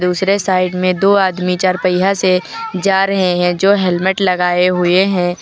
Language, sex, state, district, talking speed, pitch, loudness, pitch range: Hindi, female, Uttar Pradesh, Lucknow, 175 wpm, 185 Hz, -14 LUFS, 180-195 Hz